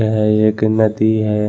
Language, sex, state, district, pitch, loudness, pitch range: Hindi, male, Chhattisgarh, Balrampur, 110 Hz, -15 LUFS, 105-110 Hz